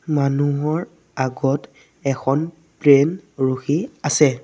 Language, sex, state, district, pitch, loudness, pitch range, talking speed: Assamese, male, Assam, Sonitpur, 145 Hz, -20 LUFS, 135-155 Hz, 80 wpm